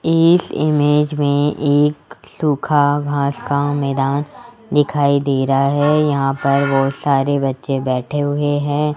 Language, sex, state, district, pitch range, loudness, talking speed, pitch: Hindi, male, Rajasthan, Jaipur, 140-150 Hz, -17 LUFS, 135 wpm, 145 Hz